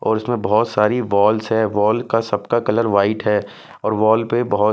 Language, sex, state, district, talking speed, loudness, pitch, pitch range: Hindi, male, Bihar, West Champaran, 205 wpm, -18 LUFS, 110 Hz, 105-115 Hz